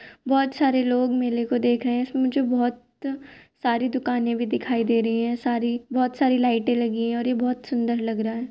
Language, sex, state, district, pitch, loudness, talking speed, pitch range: Hindi, male, Uttar Pradesh, Jyotiba Phule Nagar, 245 Hz, -23 LUFS, 225 wpm, 235-255 Hz